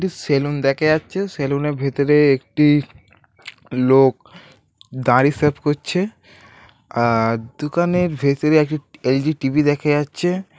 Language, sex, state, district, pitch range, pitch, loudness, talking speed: Bengali, male, West Bengal, Dakshin Dinajpur, 135-155 Hz, 145 Hz, -18 LUFS, 100 wpm